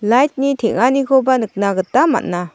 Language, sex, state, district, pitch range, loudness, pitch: Garo, female, Meghalaya, South Garo Hills, 200-270 Hz, -15 LUFS, 250 Hz